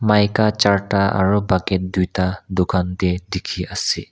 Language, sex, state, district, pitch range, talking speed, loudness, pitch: Nagamese, male, Nagaland, Kohima, 90-100 Hz, 130 wpm, -19 LUFS, 95 Hz